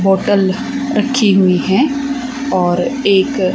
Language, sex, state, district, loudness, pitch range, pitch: Hindi, female, Haryana, Charkhi Dadri, -14 LUFS, 190-265 Hz, 215 Hz